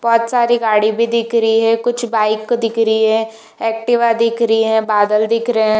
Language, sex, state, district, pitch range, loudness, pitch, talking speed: Hindi, female, Jharkhand, Jamtara, 220-235 Hz, -15 LUFS, 225 Hz, 185 wpm